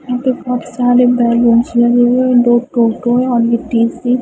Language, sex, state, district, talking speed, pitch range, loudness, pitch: Hindi, female, Punjab, Fazilka, 215 wpm, 235-250 Hz, -12 LUFS, 245 Hz